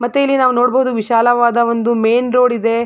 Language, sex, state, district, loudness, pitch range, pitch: Kannada, female, Karnataka, Mysore, -14 LUFS, 235-250 Hz, 240 Hz